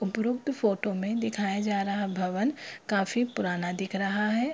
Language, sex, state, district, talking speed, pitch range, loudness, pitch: Hindi, female, Bihar, Purnia, 160 wpm, 195-230 Hz, -29 LUFS, 205 Hz